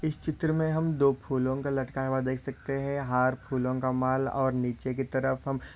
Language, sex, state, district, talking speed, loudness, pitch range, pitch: Hindi, male, Maharashtra, Solapur, 220 wpm, -29 LUFS, 130-140 Hz, 135 Hz